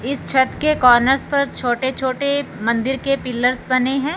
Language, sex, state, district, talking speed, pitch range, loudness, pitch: Hindi, male, Punjab, Fazilka, 175 wpm, 250-275 Hz, -18 LUFS, 260 Hz